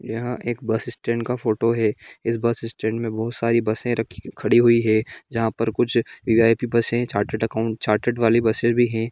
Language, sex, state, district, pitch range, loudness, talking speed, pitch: Hindi, male, Jharkhand, Sahebganj, 110-120 Hz, -22 LUFS, 190 wpm, 115 Hz